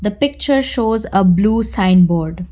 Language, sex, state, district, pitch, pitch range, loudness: English, female, Assam, Kamrup Metropolitan, 210 Hz, 180-230 Hz, -15 LUFS